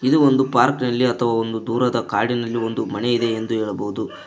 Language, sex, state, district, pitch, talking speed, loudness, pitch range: Kannada, male, Karnataka, Koppal, 120 Hz, 170 wpm, -20 LUFS, 115-125 Hz